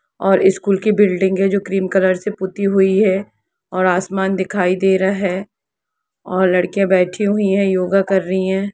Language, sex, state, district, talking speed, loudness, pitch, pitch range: Hindi, female, Jharkhand, Jamtara, 180 wpm, -16 LUFS, 190 Hz, 185-195 Hz